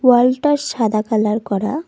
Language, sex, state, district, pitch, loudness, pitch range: Bengali, female, West Bengal, Cooch Behar, 235 Hz, -17 LUFS, 215-265 Hz